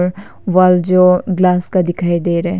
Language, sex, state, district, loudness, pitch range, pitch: Hindi, female, Arunachal Pradesh, Papum Pare, -13 LUFS, 175-185 Hz, 180 Hz